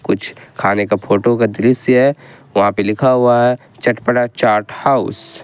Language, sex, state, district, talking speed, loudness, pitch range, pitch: Hindi, male, Jharkhand, Ranchi, 175 wpm, -15 LUFS, 105-125 Hz, 120 Hz